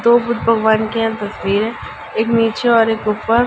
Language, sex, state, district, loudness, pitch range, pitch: Hindi, female, Uttar Pradesh, Ghazipur, -16 LUFS, 220-230 Hz, 225 Hz